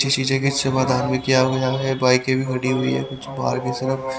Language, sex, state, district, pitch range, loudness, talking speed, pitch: Hindi, male, Haryana, Rohtak, 130-135 Hz, -20 LUFS, 245 wpm, 130 Hz